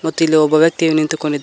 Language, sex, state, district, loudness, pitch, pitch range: Kannada, male, Karnataka, Koppal, -14 LUFS, 155 Hz, 155-160 Hz